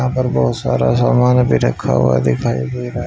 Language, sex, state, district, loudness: Hindi, male, Haryana, Rohtak, -15 LUFS